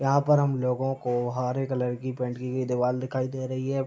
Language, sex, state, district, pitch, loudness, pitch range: Hindi, male, Bihar, Sitamarhi, 130 Hz, -27 LUFS, 125-135 Hz